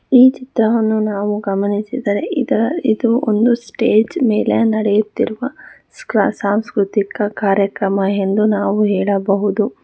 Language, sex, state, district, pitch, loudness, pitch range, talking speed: Kannada, female, Karnataka, Bangalore, 210 Hz, -16 LUFS, 200-225 Hz, 90 wpm